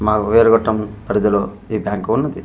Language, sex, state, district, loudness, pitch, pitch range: Telugu, male, Andhra Pradesh, Manyam, -17 LUFS, 110 Hz, 105-115 Hz